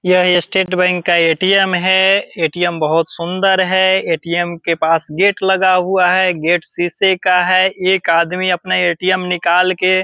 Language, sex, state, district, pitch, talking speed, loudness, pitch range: Hindi, male, Bihar, Purnia, 180 Hz, 165 wpm, -14 LUFS, 175-185 Hz